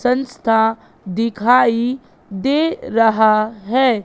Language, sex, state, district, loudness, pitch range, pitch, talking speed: Hindi, female, Madhya Pradesh, Katni, -17 LUFS, 220-255 Hz, 230 Hz, 75 wpm